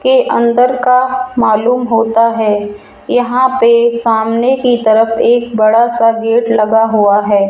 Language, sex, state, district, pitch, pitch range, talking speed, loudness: Hindi, female, Rajasthan, Jaipur, 230 Hz, 220-245 Hz, 145 wpm, -11 LUFS